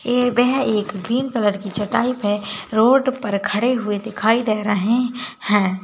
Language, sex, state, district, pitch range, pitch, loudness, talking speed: Hindi, female, Uttarakhand, Tehri Garhwal, 205-245 Hz, 220 Hz, -19 LUFS, 165 wpm